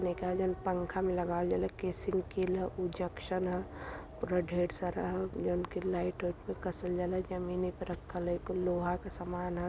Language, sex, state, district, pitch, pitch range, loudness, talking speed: Hindi, female, Uttar Pradesh, Varanasi, 180 Hz, 175-185 Hz, -36 LUFS, 225 wpm